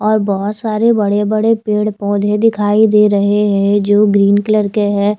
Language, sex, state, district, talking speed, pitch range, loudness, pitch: Hindi, female, Chandigarh, Chandigarh, 185 wpm, 205-215 Hz, -13 LUFS, 210 Hz